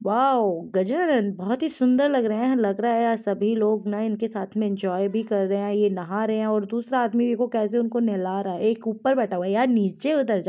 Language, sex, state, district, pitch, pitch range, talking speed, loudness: Hindi, female, Uttar Pradesh, Gorakhpur, 220 Hz, 200-240 Hz, 250 wpm, -23 LUFS